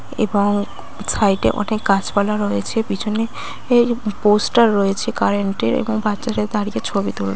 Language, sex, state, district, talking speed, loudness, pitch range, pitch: Bengali, female, West Bengal, Dakshin Dinajpur, 130 wpm, -19 LUFS, 200-220 Hz, 210 Hz